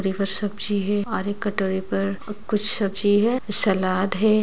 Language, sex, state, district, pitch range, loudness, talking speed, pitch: Hindi, female, Bihar, Begusarai, 195-210 Hz, -19 LUFS, 175 wpm, 205 Hz